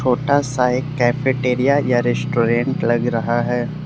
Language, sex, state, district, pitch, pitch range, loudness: Hindi, male, Arunachal Pradesh, Lower Dibang Valley, 125 Hz, 120-135 Hz, -18 LUFS